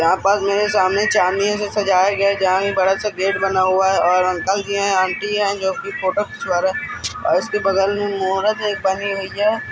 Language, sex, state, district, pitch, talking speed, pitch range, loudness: Hindi, male, Bihar, Araria, 195 Hz, 205 wpm, 190-205 Hz, -18 LUFS